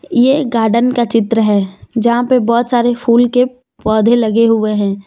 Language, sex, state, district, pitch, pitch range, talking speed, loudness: Hindi, female, Jharkhand, Deoghar, 235 Hz, 220-245 Hz, 190 wpm, -13 LUFS